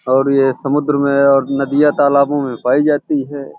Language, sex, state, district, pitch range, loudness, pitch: Hindi, male, Uttar Pradesh, Hamirpur, 135-145 Hz, -14 LUFS, 140 Hz